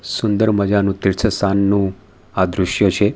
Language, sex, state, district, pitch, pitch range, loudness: Gujarati, male, Gujarat, Valsad, 100 Hz, 95-105 Hz, -17 LUFS